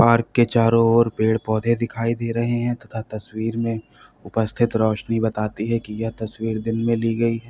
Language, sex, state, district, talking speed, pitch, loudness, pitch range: Hindi, male, Uttar Pradesh, Lalitpur, 190 wpm, 115 Hz, -22 LUFS, 110-115 Hz